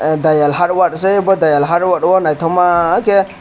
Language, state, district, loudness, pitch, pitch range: Kokborok, Tripura, West Tripura, -13 LUFS, 175 Hz, 155-190 Hz